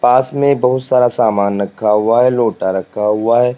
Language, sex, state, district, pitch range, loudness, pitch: Hindi, male, Uttar Pradesh, Lalitpur, 105-125 Hz, -14 LUFS, 120 Hz